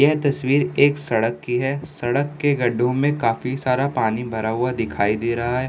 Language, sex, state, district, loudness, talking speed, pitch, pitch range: Hindi, male, Bihar, Samastipur, -21 LUFS, 200 wpm, 125 Hz, 115-140 Hz